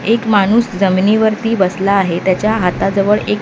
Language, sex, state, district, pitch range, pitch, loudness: Marathi, female, Maharashtra, Mumbai Suburban, 190-220 Hz, 200 Hz, -14 LUFS